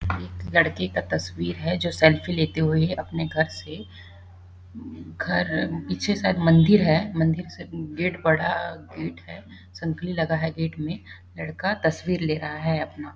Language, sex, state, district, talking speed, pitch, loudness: Hindi, female, Chhattisgarh, Bastar, 155 wpm, 155 Hz, -24 LUFS